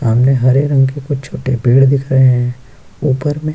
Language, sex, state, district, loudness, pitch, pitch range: Hindi, male, Bihar, Kishanganj, -13 LUFS, 130 Hz, 125-140 Hz